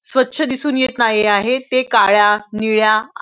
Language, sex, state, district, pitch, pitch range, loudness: Marathi, female, Maharashtra, Nagpur, 230 Hz, 215-260 Hz, -15 LUFS